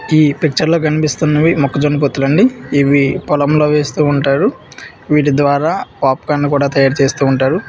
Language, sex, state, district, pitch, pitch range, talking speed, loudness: Telugu, male, Andhra Pradesh, Visakhapatnam, 145 Hz, 140-155 Hz, 140 wpm, -13 LUFS